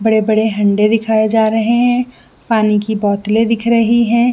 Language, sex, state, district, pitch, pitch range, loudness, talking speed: Hindi, female, Jharkhand, Jamtara, 225 Hz, 215-230 Hz, -13 LUFS, 180 wpm